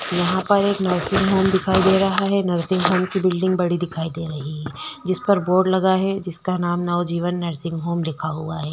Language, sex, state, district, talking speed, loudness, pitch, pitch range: Hindi, female, Chhattisgarh, Korba, 190 wpm, -20 LUFS, 180 Hz, 170-190 Hz